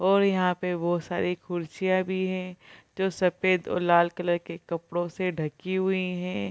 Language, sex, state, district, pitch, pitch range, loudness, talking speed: Hindi, female, Bihar, Kishanganj, 180 Hz, 175-185 Hz, -27 LUFS, 175 wpm